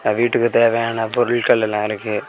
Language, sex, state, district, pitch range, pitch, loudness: Tamil, male, Tamil Nadu, Kanyakumari, 105-120 Hz, 115 Hz, -18 LUFS